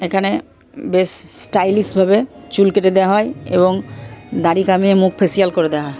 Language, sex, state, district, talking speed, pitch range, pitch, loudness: Bengali, female, West Bengal, Purulia, 160 wpm, 175-195 Hz, 190 Hz, -16 LUFS